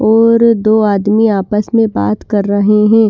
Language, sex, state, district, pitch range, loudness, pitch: Hindi, female, Bihar, Kaimur, 205-225 Hz, -11 LUFS, 215 Hz